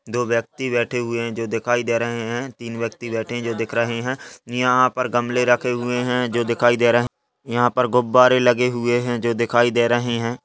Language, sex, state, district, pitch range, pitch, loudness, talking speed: Hindi, male, Uttar Pradesh, Muzaffarnagar, 115-125 Hz, 120 Hz, -20 LUFS, 230 wpm